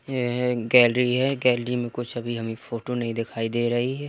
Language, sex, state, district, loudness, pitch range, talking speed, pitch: Hindi, male, Uttar Pradesh, Etah, -24 LUFS, 120-125 Hz, 220 wpm, 120 Hz